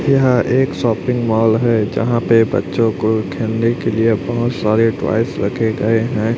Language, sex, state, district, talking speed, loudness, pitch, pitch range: Hindi, male, Chhattisgarh, Raipur, 170 wpm, -16 LUFS, 115 Hz, 110-120 Hz